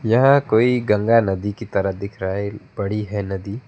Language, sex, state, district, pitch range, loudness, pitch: Hindi, male, West Bengal, Alipurduar, 100-115 Hz, -20 LUFS, 105 Hz